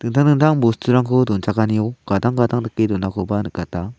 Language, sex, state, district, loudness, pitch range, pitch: Garo, male, Meghalaya, South Garo Hills, -18 LUFS, 105-125 Hz, 110 Hz